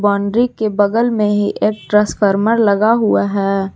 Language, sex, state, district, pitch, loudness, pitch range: Hindi, female, Jharkhand, Garhwa, 205 Hz, -15 LUFS, 200-220 Hz